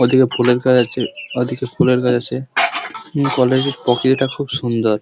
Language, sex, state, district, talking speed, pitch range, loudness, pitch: Bengali, male, West Bengal, Paschim Medinipur, 165 wpm, 125-130 Hz, -17 LUFS, 125 Hz